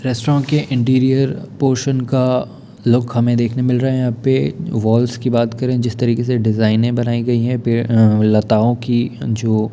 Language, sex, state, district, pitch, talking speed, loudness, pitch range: Hindi, male, Bihar, Darbhanga, 120 Hz, 180 wpm, -16 LUFS, 115-130 Hz